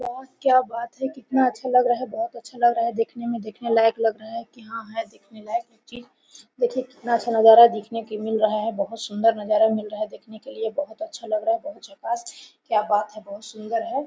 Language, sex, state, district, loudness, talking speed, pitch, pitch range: Hindi, female, Jharkhand, Sahebganj, -23 LUFS, 255 wpm, 230 Hz, 220-255 Hz